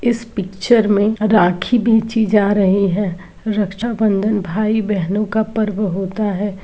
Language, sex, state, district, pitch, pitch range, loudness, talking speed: Hindi, female, Uttar Pradesh, Varanasi, 210 Hz, 195-220 Hz, -17 LUFS, 125 wpm